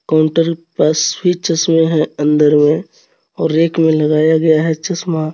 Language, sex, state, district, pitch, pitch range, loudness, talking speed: Hindi, male, Jharkhand, Garhwa, 160 Hz, 155-165 Hz, -14 LUFS, 135 wpm